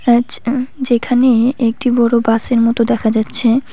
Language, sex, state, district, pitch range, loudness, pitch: Bengali, female, West Bengal, Cooch Behar, 230-250 Hz, -14 LUFS, 235 Hz